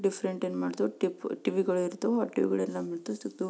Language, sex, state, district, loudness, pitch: Kannada, female, Karnataka, Belgaum, -31 LUFS, 175 Hz